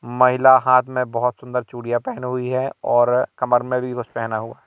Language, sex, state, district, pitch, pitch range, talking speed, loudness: Hindi, male, Madhya Pradesh, Katni, 125 Hz, 120-125 Hz, 205 wpm, -19 LUFS